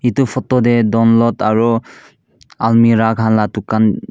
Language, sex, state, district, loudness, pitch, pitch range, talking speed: Nagamese, male, Nagaland, Kohima, -14 LUFS, 115 Hz, 110-115 Hz, 115 wpm